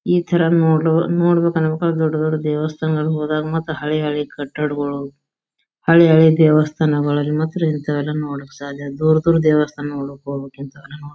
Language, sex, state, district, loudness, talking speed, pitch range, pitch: Kannada, female, Karnataka, Bijapur, -18 LUFS, 150 wpm, 145-160 Hz, 155 Hz